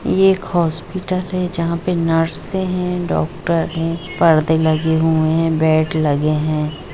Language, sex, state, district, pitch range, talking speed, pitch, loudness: Hindi, female, Jharkhand, Jamtara, 160-180 Hz, 165 wpm, 165 Hz, -17 LUFS